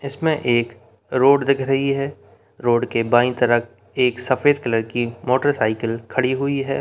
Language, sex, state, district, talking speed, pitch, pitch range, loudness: Hindi, male, Bihar, Begusarai, 165 wpm, 125 Hz, 120-140 Hz, -20 LUFS